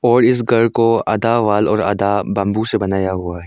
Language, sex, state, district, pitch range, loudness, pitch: Hindi, male, Arunachal Pradesh, Longding, 100-115 Hz, -16 LUFS, 105 Hz